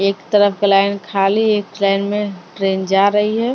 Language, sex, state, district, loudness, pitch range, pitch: Hindi, female, Maharashtra, Mumbai Suburban, -16 LUFS, 195-210 Hz, 200 Hz